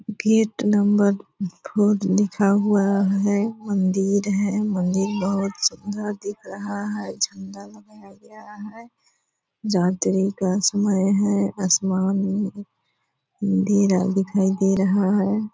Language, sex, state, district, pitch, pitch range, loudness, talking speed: Hindi, female, Bihar, Purnia, 200 Hz, 195-210 Hz, -21 LUFS, 100 wpm